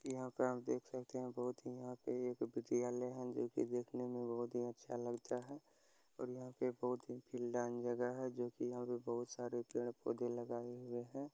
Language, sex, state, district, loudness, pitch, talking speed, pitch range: Hindi, male, Bihar, Araria, -44 LUFS, 125 Hz, 190 wpm, 120-125 Hz